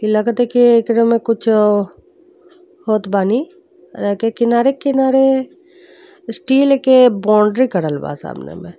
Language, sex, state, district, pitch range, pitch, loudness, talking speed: Bhojpuri, female, Uttar Pradesh, Deoria, 215-275 Hz, 240 Hz, -14 LUFS, 125 wpm